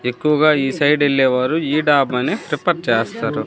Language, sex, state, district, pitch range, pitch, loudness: Telugu, female, Andhra Pradesh, Manyam, 130-150 Hz, 145 Hz, -17 LUFS